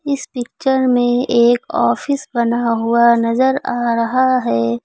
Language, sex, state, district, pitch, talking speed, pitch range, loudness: Hindi, female, Uttar Pradesh, Lucknow, 245 Hz, 135 wpm, 235-260 Hz, -16 LUFS